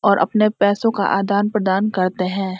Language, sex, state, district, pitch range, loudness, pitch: Hindi, female, Uttarakhand, Uttarkashi, 190-215 Hz, -18 LUFS, 200 Hz